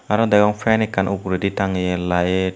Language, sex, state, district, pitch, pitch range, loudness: Chakma, male, Tripura, Unakoti, 100 Hz, 95-105 Hz, -19 LUFS